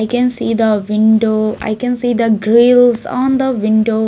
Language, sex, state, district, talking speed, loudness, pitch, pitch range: English, female, Maharashtra, Mumbai Suburban, 190 wpm, -13 LUFS, 225 Hz, 215-245 Hz